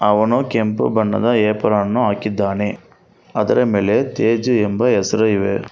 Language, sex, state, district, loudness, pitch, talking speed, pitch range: Kannada, male, Karnataka, Bangalore, -17 LUFS, 105 Hz, 125 wpm, 105-115 Hz